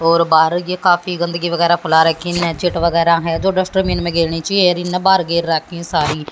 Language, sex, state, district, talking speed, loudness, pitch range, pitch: Hindi, female, Haryana, Jhajjar, 160 wpm, -15 LUFS, 165-180 Hz, 170 Hz